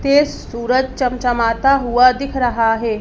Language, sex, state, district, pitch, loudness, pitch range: Hindi, female, Madhya Pradesh, Bhopal, 250 Hz, -16 LUFS, 235-270 Hz